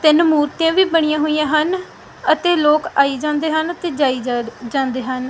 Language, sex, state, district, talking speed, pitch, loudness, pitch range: Punjabi, female, Punjab, Fazilka, 180 wpm, 305 Hz, -17 LUFS, 275-325 Hz